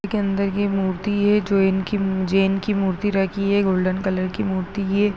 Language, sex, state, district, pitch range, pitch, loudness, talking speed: Hindi, male, Chhattisgarh, Balrampur, 190-205 Hz, 195 Hz, -21 LUFS, 175 wpm